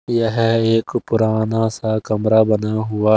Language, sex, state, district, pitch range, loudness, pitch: Hindi, male, Delhi, New Delhi, 110-115 Hz, -18 LUFS, 110 Hz